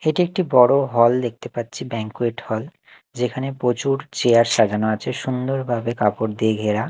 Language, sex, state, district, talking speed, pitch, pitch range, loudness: Bengali, male, Odisha, Nuapada, 155 wpm, 120 Hz, 110-135 Hz, -20 LUFS